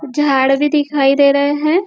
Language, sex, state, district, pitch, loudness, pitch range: Hindi, female, Maharashtra, Nagpur, 285 Hz, -13 LUFS, 280-295 Hz